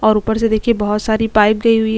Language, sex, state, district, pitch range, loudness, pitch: Hindi, female, Chhattisgarh, Sukma, 215-225 Hz, -15 LUFS, 220 Hz